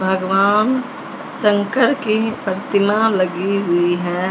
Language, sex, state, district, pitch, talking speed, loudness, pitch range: Hindi, male, Punjab, Fazilka, 205 Hz, 95 wpm, -17 LUFS, 190-225 Hz